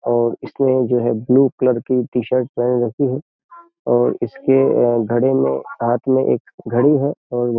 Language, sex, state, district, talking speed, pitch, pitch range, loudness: Hindi, male, Uttar Pradesh, Jyotiba Phule Nagar, 175 wpm, 125 Hz, 120-135 Hz, -17 LUFS